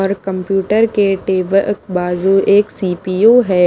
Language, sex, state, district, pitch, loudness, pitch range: Hindi, female, Maharashtra, Mumbai Suburban, 195 Hz, -14 LUFS, 185-205 Hz